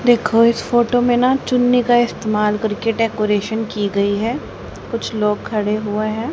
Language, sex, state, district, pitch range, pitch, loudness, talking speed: Hindi, female, Haryana, Charkhi Dadri, 210-240 Hz, 225 Hz, -17 LUFS, 170 wpm